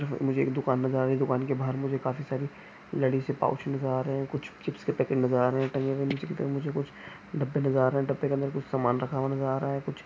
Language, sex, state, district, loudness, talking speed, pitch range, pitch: Hindi, male, Chhattisgarh, Bastar, -29 LUFS, 290 wpm, 130-140 Hz, 135 Hz